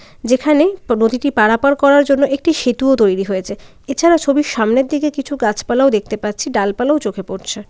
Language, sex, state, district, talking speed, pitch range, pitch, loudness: Bengali, female, West Bengal, Jalpaiguri, 170 wpm, 215-285 Hz, 260 Hz, -15 LUFS